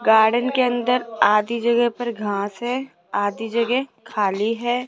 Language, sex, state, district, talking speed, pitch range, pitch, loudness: Hindi, female, Rajasthan, Jaipur, 145 wpm, 220-245 Hz, 235 Hz, -21 LUFS